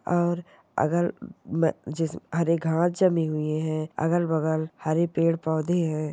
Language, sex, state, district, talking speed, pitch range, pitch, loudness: Hindi, female, Goa, North and South Goa, 125 wpm, 155-170 Hz, 165 Hz, -26 LUFS